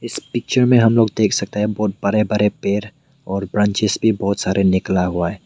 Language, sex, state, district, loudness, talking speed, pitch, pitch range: Hindi, male, Meghalaya, West Garo Hills, -18 LUFS, 220 wpm, 105 Hz, 100-110 Hz